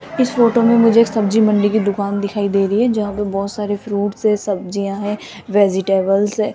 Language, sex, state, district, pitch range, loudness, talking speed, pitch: Hindi, female, Rajasthan, Jaipur, 200-215 Hz, -16 LUFS, 200 wpm, 205 Hz